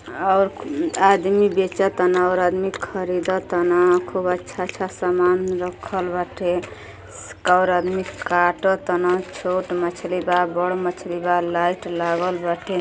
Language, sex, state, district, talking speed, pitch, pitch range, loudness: Bhojpuri, female, Uttar Pradesh, Gorakhpur, 110 wpm, 180 Hz, 175-185 Hz, -21 LUFS